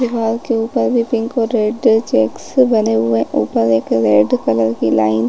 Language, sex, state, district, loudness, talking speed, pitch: Hindi, female, Chhattisgarh, Rajnandgaon, -15 LUFS, 205 wpm, 215 Hz